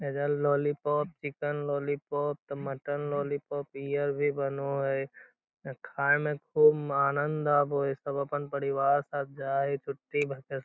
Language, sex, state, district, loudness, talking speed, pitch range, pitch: Hindi, male, Bihar, Lakhisarai, -30 LUFS, 140 wpm, 140-145 Hz, 145 Hz